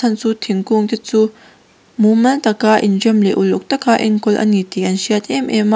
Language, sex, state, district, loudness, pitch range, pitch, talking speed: Mizo, female, Mizoram, Aizawl, -15 LUFS, 210-225 Hz, 220 Hz, 220 wpm